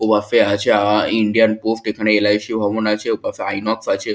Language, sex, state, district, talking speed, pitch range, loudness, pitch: Bengali, male, West Bengal, Kolkata, 190 wpm, 105-110 Hz, -17 LUFS, 105 Hz